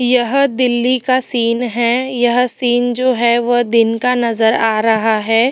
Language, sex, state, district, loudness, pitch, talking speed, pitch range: Hindi, female, Delhi, New Delhi, -13 LUFS, 240 Hz, 175 wpm, 230-250 Hz